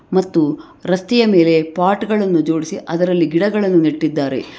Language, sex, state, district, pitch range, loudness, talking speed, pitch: Kannada, female, Karnataka, Bangalore, 160-190 Hz, -16 LUFS, 120 wpm, 170 Hz